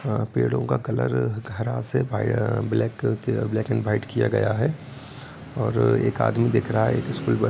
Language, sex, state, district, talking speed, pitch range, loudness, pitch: Hindi, male, Bihar, Gopalganj, 200 wpm, 105-125 Hz, -24 LUFS, 115 Hz